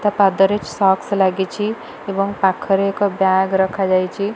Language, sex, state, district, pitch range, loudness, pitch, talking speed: Odia, female, Odisha, Malkangiri, 190-200 Hz, -17 LUFS, 195 Hz, 150 wpm